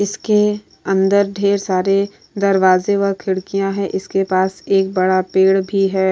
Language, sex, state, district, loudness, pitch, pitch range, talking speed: Hindi, female, Maharashtra, Aurangabad, -17 LUFS, 195 Hz, 190-200 Hz, 145 wpm